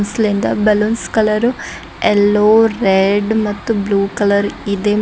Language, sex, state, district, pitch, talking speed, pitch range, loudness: Kannada, female, Karnataka, Bidar, 210 Hz, 105 wpm, 205-220 Hz, -14 LUFS